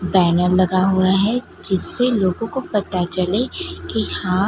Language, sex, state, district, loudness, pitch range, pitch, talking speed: Hindi, female, Gujarat, Gandhinagar, -17 LUFS, 185-215 Hz, 190 Hz, 145 wpm